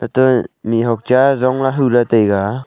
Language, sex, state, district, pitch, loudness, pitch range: Wancho, male, Arunachal Pradesh, Longding, 125 Hz, -15 LUFS, 115-130 Hz